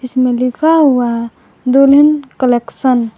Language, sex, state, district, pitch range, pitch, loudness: Hindi, female, Jharkhand, Garhwa, 240-275 Hz, 255 Hz, -12 LUFS